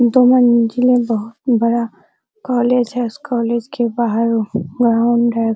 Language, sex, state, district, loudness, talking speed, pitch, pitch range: Hindi, female, Bihar, Araria, -16 LUFS, 130 wpm, 235 Hz, 230-245 Hz